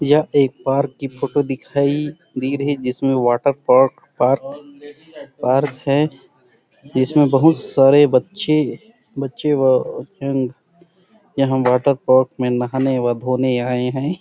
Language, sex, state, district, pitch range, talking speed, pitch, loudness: Hindi, male, Chhattisgarh, Sarguja, 130-145 Hz, 120 wpm, 135 Hz, -18 LUFS